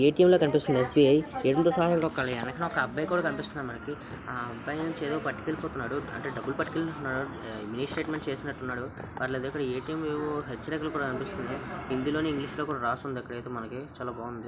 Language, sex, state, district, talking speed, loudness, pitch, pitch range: Telugu, male, Andhra Pradesh, Visakhapatnam, 145 wpm, -30 LUFS, 140 Hz, 125-155 Hz